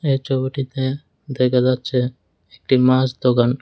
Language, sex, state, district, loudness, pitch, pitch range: Bengali, male, Tripura, West Tripura, -19 LUFS, 130 Hz, 125-135 Hz